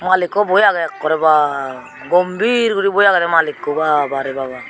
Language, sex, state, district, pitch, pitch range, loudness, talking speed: Chakma, female, Tripura, Unakoti, 165 Hz, 145-195 Hz, -15 LUFS, 180 wpm